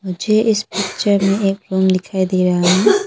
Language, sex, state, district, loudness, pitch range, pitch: Hindi, female, Arunachal Pradesh, Papum Pare, -16 LUFS, 185-205 Hz, 195 Hz